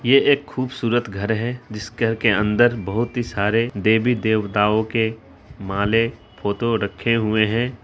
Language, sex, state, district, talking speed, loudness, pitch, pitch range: Hindi, female, Bihar, Araria, 140 wpm, -20 LUFS, 110 Hz, 105-120 Hz